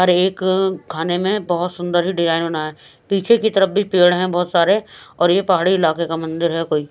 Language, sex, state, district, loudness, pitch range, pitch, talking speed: Hindi, female, Himachal Pradesh, Shimla, -17 LUFS, 165-190 Hz, 175 Hz, 210 wpm